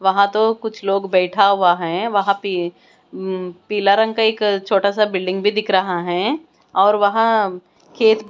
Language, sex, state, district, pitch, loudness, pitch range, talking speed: Hindi, female, Bihar, West Champaran, 200 Hz, -18 LUFS, 185-215 Hz, 175 wpm